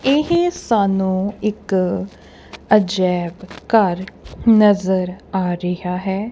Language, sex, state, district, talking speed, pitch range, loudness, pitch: Punjabi, female, Punjab, Kapurthala, 85 wpm, 185-215 Hz, -18 LUFS, 190 Hz